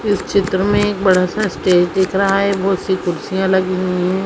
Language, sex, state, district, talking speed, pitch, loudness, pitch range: Hindi, female, Chhattisgarh, Sarguja, 210 wpm, 190 Hz, -16 LUFS, 185-200 Hz